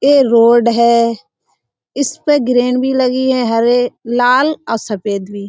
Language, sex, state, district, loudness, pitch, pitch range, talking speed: Hindi, female, Uttar Pradesh, Budaun, -13 LUFS, 240 Hz, 225-260 Hz, 140 wpm